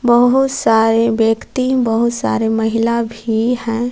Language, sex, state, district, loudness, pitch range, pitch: Hindi, female, Jharkhand, Palamu, -15 LUFS, 225-245 Hz, 230 Hz